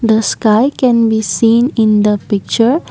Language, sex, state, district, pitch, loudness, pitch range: English, female, Assam, Kamrup Metropolitan, 225 Hz, -12 LUFS, 215-240 Hz